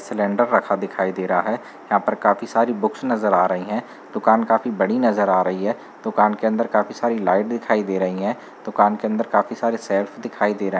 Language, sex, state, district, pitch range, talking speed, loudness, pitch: Hindi, male, Uttar Pradesh, Muzaffarnagar, 95-115 Hz, 235 wpm, -20 LUFS, 105 Hz